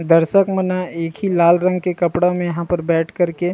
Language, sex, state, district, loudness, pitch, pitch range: Chhattisgarhi, male, Chhattisgarh, Rajnandgaon, -17 LUFS, 175 Hz, 170-180 Hz